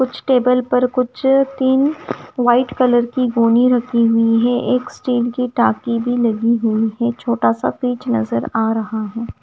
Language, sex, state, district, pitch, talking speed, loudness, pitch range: Hindi, female, Punjab, Kapurthala, 245 Hz, 170 wpm, -17 LUFS, 230-250 Hz